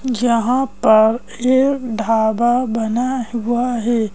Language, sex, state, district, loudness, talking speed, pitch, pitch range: Hindi, female, Madhya Pradesh, Bhopal, -17 LUFS, 100 wpm, 240 Hz, 225-250 Hz